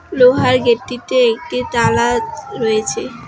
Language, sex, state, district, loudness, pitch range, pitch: Bengali, female, West Bengal, Alipurduar, -15 LUFS, 235-370 Hz, 250 Hz